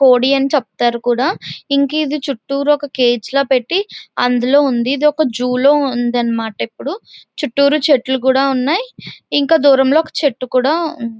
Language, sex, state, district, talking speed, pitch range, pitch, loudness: Telugu, female, Andhra Pradesh, Visakhapatnam, 145 wpm, 250-290 Hz, 275 Hz, -15 LUFS